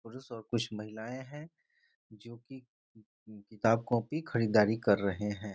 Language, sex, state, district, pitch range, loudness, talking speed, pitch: Hindi, male, Bihar, Muzaffarpur, 105-125 Hz, -32 LUFS, 130 wpm, 115 Hz